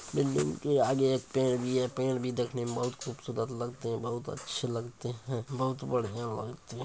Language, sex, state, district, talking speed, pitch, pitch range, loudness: Hindi, male, Bihar, Begusarai, 200 wpm, 125 Hz, 120-130 Hz, -32 LUFS